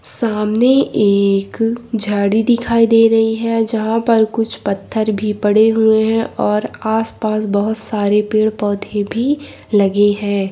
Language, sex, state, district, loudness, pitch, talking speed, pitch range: Hindi, female, Jharkhand, Jamtara, -15 LUFS, 220 Hz, 140 wpm, 205-225 Hz